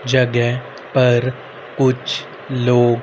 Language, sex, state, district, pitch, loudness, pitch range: Hindi, male, Haryana, Rohtak, 125 Hz, -18 LUFS, 120-130 Hz